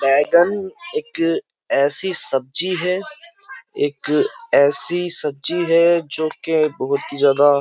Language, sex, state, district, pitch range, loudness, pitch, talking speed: Hindi, male, Uttar Pradesh, Jyotiba Phule Nagar, 145-220 Hz, -17 LUFS, 170 Hz, 110 wpm